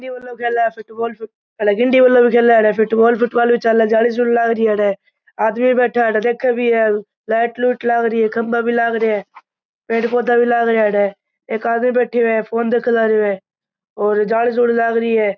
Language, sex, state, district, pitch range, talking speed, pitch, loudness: Marwari, male, Rajasthan, Churu, 220-240 Hz, 220 wpm, 230 Hz, -16 LUFS